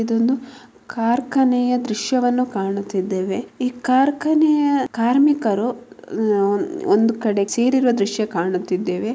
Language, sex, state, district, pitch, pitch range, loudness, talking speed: Kannada, female, Karnataka, Mysore, 235 Hz, 200-255 Hz, -19 LUFS, 80 wpm